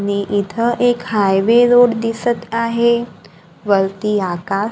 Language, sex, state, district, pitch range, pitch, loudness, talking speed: Marathi, female, Maharashtra, Gondia, 200-235 Hz, 215 Hz, -16 LUFS, 115 wpm